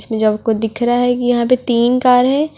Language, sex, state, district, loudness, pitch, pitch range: Hindi, female, Delhi, New Delhi, -14 LUFS, 245 Hz, 230-250 Hz